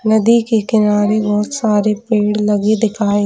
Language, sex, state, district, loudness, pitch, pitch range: Hindi, female, Jharkhand, Jamtara, -14 LUFS, 215 Hz, 210-220 Hz